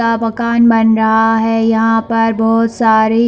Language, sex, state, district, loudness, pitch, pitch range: Hindi, female, Chhattisgarh, Bilaspur, -12 LUFS, 225 Hz, 225-230 Hz